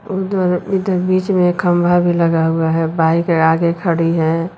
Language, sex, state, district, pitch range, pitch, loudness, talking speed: Hindi, female, Uttar Pradesh, Lucknow, 165-180 Hz, 175 Hz, -15 LUFS, 170 wpm